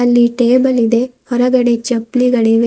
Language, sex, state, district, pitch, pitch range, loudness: Kannada, female, Karnataka, Bidar, 245 Hz, 235-250 Hz, -13 LUFS